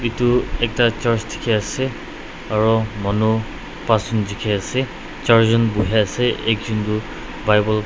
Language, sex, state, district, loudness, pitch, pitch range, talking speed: Nagamese, male, Nagaland, Dimapur, -19 LUFS, 110 Hz, 105-115 Hz, 130 wpm